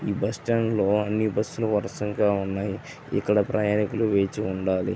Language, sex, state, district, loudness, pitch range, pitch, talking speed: Telugu, male, Andhra Pradesh, Visakhapatnam, -25 LUFS, 100-110 Hz, 105 Hz, 155 wpm